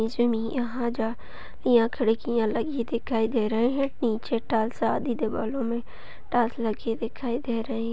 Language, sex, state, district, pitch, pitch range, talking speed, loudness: Hindi, female, Uttar Pradesh, Hamirpur, 235 Hz, 225-245 Hz, 135 wpm, -27 LUFS